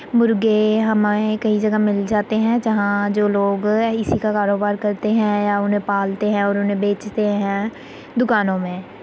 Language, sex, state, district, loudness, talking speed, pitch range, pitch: Hindi, female, Uttar Pradesh, Muzaffarnagar, -19 LUFS, 175 wpm, 205-215 Hz, 210 Hz